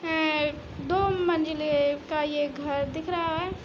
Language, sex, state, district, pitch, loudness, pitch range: Hindi, female, Uttar Pradesh, Budaun, 310 Hz, -27 LUFS, 290-340 Hz